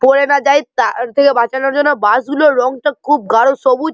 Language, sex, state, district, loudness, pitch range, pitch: Bengali, male, West Bengal, Malda, -13 LUFS, 250-285 Hz, 275 Hz